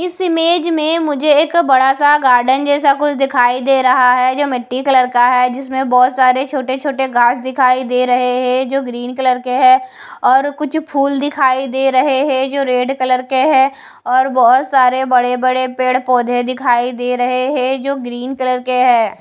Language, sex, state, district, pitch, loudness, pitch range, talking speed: Hindi, female, Odisha, Khordha, 260 Hz, -13 LUFS, 250-275 Hz, 195 wpm